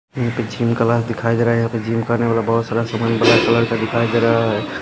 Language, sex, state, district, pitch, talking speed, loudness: Hindi, male, Himachal Pradesh, Shimla, 115 Hz, 275 wpm, -17 LUFS